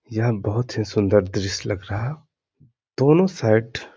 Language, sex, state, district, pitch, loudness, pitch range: Hindi, male, Uttar Pradesh, Hamirpur, 110 Hz, -21 LUFS, 105-130 Hz